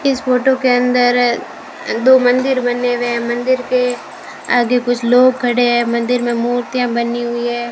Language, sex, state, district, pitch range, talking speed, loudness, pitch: Hindi, female, Rajasthan, Bikaner, 240-250 Hz, 170 wpm, -15 LUFS, 245 Hz